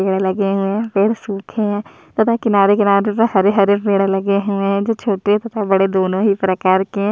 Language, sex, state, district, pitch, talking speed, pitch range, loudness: Hindi, male, Chhattisgarh, Sukma, 200 Hz, 225 wpm, 195-210 Hz, -16 LUFS